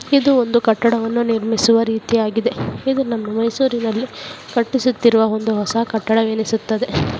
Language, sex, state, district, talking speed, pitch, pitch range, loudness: Kannada, female, Karnataka, Mysore, 110 wpm, 230 Hz, 220-235 Hz, -18 LUFS